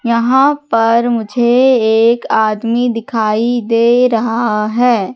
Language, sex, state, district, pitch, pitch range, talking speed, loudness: Hindi, female, Madhya Pradesh, Katni, 235 Hz, 225-245 Hz, 105 wpm, -13 LUFS